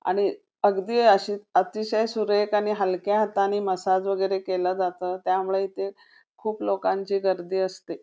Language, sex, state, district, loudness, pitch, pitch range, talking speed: Marathi, female, Karnataka, Belgaum, -25 LUFS, 195 Hz, 185-210 Hz, 110 wpm